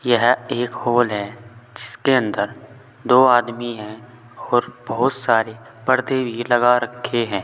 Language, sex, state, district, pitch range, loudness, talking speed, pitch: Hindi, male, Uttar Pradesh, Saharanpur, 115-125 Hz, -19 LUFS, 135 wpm, 120 Hz